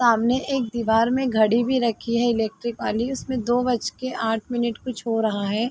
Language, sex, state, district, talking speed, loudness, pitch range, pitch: Hindi, female, Bihar, Sitamarhi, 210 wpm, -23 LUFS, 225-250 Hz, 235 Hz